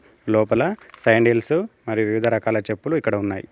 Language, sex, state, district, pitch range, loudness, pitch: Telugu, male, Telangana, Komaram Bheem, 110-115 Hz, -21 LUFS, 110 Hz